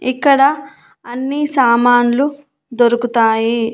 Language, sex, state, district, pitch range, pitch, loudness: Telugu, female, Andhra Pradesh, Annamaya, 235-280 Hz, 245 Hz, -14 LUFS